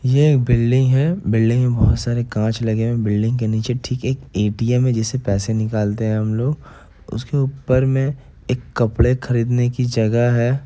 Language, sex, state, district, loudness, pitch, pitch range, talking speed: Hindi, male, Bihar, Gopalganj, -18 LUFS, 120 Hz, 110-130 Hz, 190 wpm